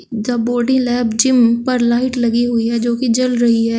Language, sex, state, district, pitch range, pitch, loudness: Hindi, male, Uttar Pradesh, Shamli, 235-245 Hz, 240 Hz, -15 LUFS